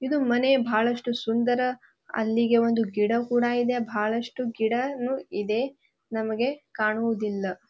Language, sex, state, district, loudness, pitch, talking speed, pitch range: Kannada, female, Karnataka, Bijapur, -26 LUFS, 235 Hz, 110 wpm, 220-245 Hz